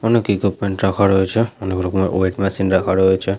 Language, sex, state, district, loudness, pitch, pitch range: Bengali, male, West Bengal, Malda, -18 LUFS, 95 Hz, 95-100 Hz